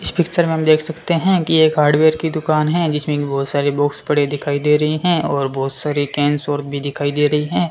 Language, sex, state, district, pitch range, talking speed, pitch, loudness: Hindi, male, Rajasthan, Bikaner, 145-160 Hz, 255 wpm, 150 Hz, -17 LUFS